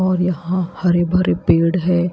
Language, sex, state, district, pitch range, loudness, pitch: Hindi, female, Haryana, Rohtak, 170-180 Hz, -17 LUFS, 180 Hz